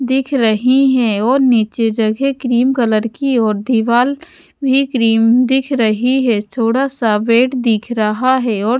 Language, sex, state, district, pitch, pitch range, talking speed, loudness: Hindi, female, Odisha, Sambalpur, 240 Hz, 225-260 Hz, 155 wpm, -14 LUFS